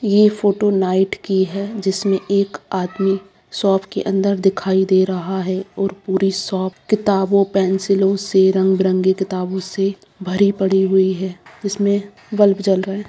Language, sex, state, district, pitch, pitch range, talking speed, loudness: Hindi, female, Bihar, Jamui, 195 Hz, 190-200 Hz, 155 wpm, -18 LUFS